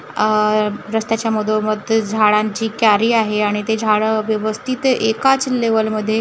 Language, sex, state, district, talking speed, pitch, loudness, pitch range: Marathi, female, Maharashtra, Gondia, 125 wpm, 220 Hz, -17 LUFS, 215-225 Hz